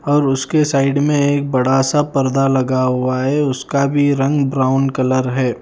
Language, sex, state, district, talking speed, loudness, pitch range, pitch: Hindi, male, Himachal Pradesh, Shimla, 180 wpm, -16 LUFS, 130-145 Hz, 135 Hz